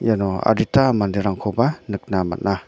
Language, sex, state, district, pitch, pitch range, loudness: Garo, male, Meghalaya, North Garo Hills, 100 Hz, 95-115 Hz, -20 LUFS